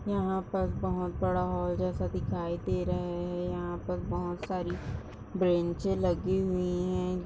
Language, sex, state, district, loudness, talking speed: Hindi, female, Chhattisgarh, Rajnandgaon, -32 LUFS, 150 wpm